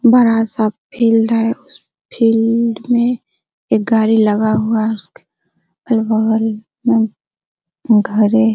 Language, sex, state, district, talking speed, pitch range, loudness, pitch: Hindi, female, Bihar, Araria, 125 wpm, 220-230 Hz, -15 LUFS, 225 Hz